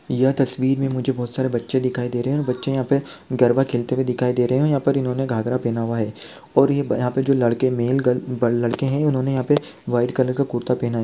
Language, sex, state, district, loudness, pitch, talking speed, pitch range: Hindi, male, Rajasthan, Churu, -21 LUFS, 130 Hz, 265 wpm, 120-135 Hz